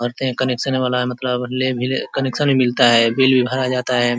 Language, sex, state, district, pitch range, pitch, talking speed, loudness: Hindi, male, Uttar Pradesh, Ghazipur, 125-130 Hz, 125 Hz, 230 wpm, -17 LUFS